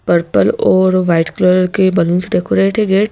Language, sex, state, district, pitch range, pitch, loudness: Hindi, female, Madhya Pradesh, Bhopal, 175-195 Hz, 185 Hz, -13 LUFS